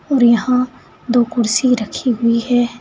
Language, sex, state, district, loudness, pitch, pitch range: Hindi, female, Uttar Pradesh, Saharanpur, -16 LUFS, 240 Hz, 230-250 Hz